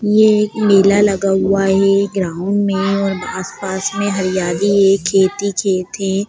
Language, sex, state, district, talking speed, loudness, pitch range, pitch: Hindi, female, Bihar, Darbhanga, 170 wpm, -15 LUFS, 190-200 Hz, 195 Hz